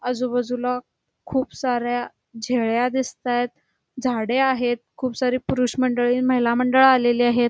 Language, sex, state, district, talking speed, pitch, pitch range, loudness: Marathi, female, Karnataka, Belgaum, 120 wpm, 250 Hz, 245-255 Hz, -21 LUFS